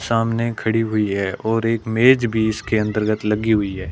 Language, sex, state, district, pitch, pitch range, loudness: Hindi, male, Rajasthan, Bikaner, 110 Hz, 105-115 Hz, -19 LUFS